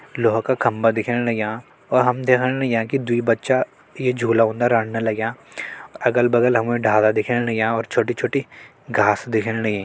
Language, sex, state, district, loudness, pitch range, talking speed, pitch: Hindi, male, Uttarakhand, Tehri Garhwal, -20 LUFS, 110-125 Hz, 165 wpm, 115 Hz